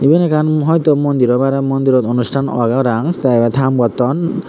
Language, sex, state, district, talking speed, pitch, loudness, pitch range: Chakma, male, Tripura, Unakoti, 185 wpm, 135 Hz, -14 LUFS, 125-155 Hz